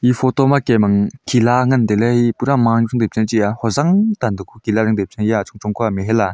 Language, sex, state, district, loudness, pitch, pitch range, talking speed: Wancho, male, Arunachal Pradesh, Longding, -16 LUFS, 115 Hz, 105-125 Hz, 255 wpm